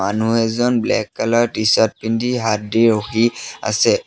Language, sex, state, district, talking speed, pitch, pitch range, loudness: Assamese, male, Assam, Sonitpur, 150 wpm, 115 Hz, 110-120 Hz, -17 LUFS